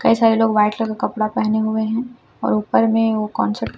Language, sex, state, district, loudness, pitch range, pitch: Hindi, female, Chhattisgarh, Raipur, -18 LUFS, 210-225 Hz, 220 Hz